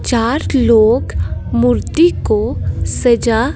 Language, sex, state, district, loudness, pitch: Hindi, female, Himachal Pradesh, Shimla, -14 LUFS, 225 Hz